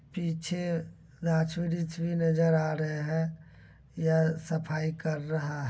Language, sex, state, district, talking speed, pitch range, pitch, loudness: Angika, male, Bihar, Begusarai, 105 wpm, 155-165 Hz, 160 Hz, -30 LUFS